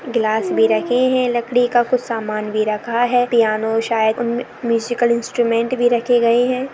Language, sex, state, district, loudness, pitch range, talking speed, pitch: Hindi, female, Chhattisgarh, Bastar, -17 LUFS, 225-245 Hz, 180 wpm, 235 Hz